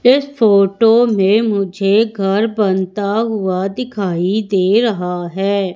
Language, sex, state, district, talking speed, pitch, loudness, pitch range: Hindi, female, Madhya Pradesh, Umaria, 115 wpm, 200 Hz, -15 LUFS, 190-225 Hz